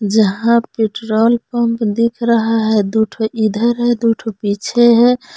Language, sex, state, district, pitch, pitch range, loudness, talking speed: Hindi, female, Jharkhand, Palamu, 230 Hz, 220-235 Hz, -15 LUFS, 155 wpm